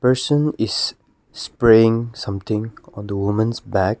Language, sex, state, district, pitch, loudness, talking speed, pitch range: English, male, Nagaland, Kohima, 110 Hz, -19 LUFS, 120 wpm, 105-120 Hz